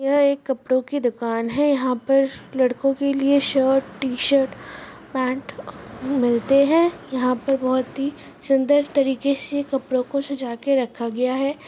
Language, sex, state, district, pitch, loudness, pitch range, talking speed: Hindi, female, Rajasthan, Churu, 270 Hz, -21 LUFS, 255-280 Hz, 155 wpm